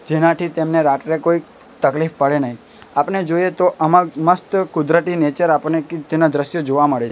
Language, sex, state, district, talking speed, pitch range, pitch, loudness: Gujarati, male, Gujarat, Valsad, 170 wpm, 145-170 Hz, 160 Hz, -17 LUFS